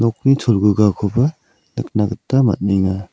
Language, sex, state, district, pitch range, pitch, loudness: Garo, male, Meghalaya, South Garo Hills, 100-125 Hz, 105 Hz, -17 LUFS